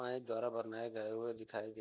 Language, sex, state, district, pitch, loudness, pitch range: Hindi, male, Uttar Pradesh, Deoria, 115 Hz, -42 LUFS, 110-120 Hz